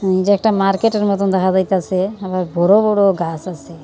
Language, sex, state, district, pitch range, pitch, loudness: Bengali, female, Tripura, Unakoti, 185-200 Hz, 190 Hz, -16 LUFS